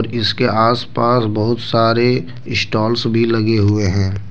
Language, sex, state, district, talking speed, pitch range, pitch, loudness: Hindi, male, Jharkhand, Deoghar, 155 wpm, 110-120 Hz, 115 Hz, -16 LUFS